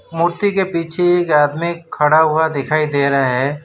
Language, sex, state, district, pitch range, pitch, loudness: Hindi, male, Gujarat, Valsad, 145-170 Hz, 160 Hz, -16 LUFS